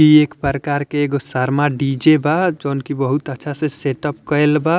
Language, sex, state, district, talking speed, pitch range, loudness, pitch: Bhojpuri, male, Bihar, Muzaffarpur, 200 wpm, 140-150 Hz, -18 LUFS, 145 Hz